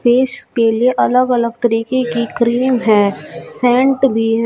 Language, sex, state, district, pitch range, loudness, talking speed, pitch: Hindi, female, Uttar Pradesh, Shamli, 225-255 Hz, -14 LUFS, 150 wpm, 240 Hz